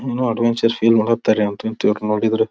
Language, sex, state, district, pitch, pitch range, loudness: Kannada, male, Karnataka, Dharwad, 115 Hz, 110-115 Hz, -18 LUFS